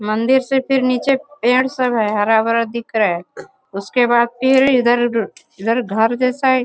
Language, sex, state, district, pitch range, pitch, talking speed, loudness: Hindi, female, Bihar, Bhagalpur, 225-260 Hz, 240 Hz, 170 wpm, -16 LUFS